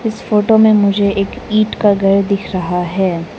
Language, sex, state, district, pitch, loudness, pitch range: Hindi, female, Arunachal Pradesh, Lower Dibang Valley, 200 Hz, -14 LUFS, 195-215 Hz